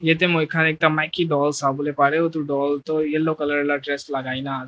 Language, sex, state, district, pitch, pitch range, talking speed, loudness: Nagamese, male, Nagaland, Dimapur, 150 Hz, 140-160 Hz, 245 wpm, -21 LUFS